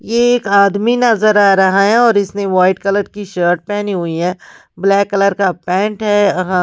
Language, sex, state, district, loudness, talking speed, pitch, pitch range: Hindi, female, Punjab, Pathankot, -13 LUFS, 170 wpm, 200 Hz, 185-205 Hz